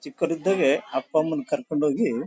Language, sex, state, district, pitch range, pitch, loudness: Kannada, male, Karnataka, Bellary, 150-195 Hz, 165 Hz, -24 LUFS